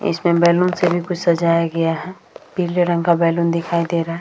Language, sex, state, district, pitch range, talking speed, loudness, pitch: Hindi, female, Bihar, Vaishali, 170-175 Hz, 215 wpm, -18 LUFS, 170 Hz